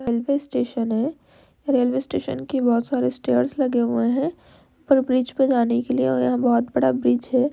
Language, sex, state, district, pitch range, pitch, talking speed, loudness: Hindi, female, Uttar Pradesh, Hamirpur, 235-265 Hz, 245 Hz, 205 wpm, -21 LUFS